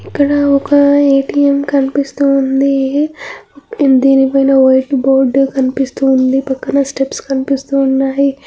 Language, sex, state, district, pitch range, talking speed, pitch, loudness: Telugu, female, Andhra Pradesh, Anantapur, 270-280 Hz, 100 wpm, 275 Hz, -12 LUFS